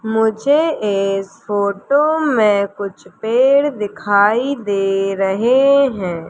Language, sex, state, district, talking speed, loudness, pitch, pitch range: Hindi, female, Madhya Pradesh, Umaria, 95 wpm, -16 LUFS, 210 Hz, 195-270 Hz